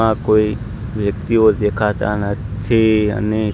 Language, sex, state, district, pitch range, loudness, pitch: Gujarati, male, Gujarat, Gandhinagar, 105-110 Hz, -17 LUFS, 105 Hz